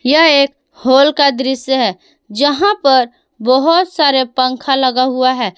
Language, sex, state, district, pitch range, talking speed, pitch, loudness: Hindi, female, Jharkhand, Garhwa, 255-295 Hz, 150 wpm, 265 Hz, -13 LUFS